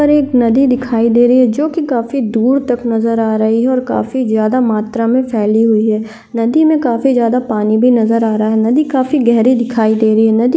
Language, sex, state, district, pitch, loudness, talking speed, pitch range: Hindi, female, Chhattisgarh, Korba, 235 Hz, -13 LUFS, 215 wpm, 225-255 Hz